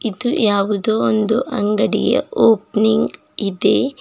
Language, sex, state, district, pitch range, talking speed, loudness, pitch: Kannada, female, Karnataka, Bidar, 205-225 Hz, 90 wpm, -17 LUFS, 215 Hz